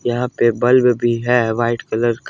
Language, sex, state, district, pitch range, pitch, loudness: Hindi, male, Jharkhand, Ranchi, 115-125 Hz, 120 Hz, -16 LUFS